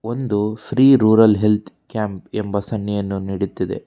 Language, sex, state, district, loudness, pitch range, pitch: Kannada, male, Karnataka, Bangalore, -18 LUFS, 100-110 Hz, 105 Hz